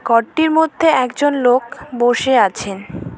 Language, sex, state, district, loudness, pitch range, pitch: Bengali, female, West Bengal, Cooch Behar, -15 LUFS, 230-290 Hz, 250 Hz